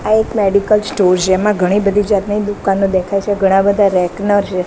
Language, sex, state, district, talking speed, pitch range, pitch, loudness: Gujarati, female, Gujarat, Gandhinagar, 180 wpm, 190-205 Hz, 200 Hz, -14 LUFS